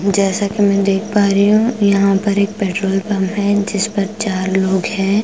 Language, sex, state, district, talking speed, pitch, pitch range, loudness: Hindi, female, Punjab, Kapurthala, 205 wpm, 200 Hz, 195-205 Hz, -15 LUFS